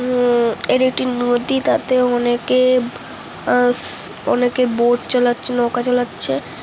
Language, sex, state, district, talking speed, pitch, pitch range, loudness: Bengali, female, West Bengal, North 24 Parganas, 100 wpm, 245 Hz, 240-250 Hz, -16 LUFS